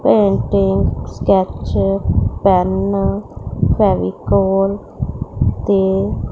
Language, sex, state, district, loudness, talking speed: Hindi, male, Punjab, Pathankot, -16 LUFS, 50 wpm